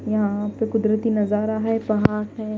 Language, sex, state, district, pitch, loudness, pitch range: Hindi, female, Punjab, Kapurthala, 215 Hz, -22 LUFS, 210-220 Hz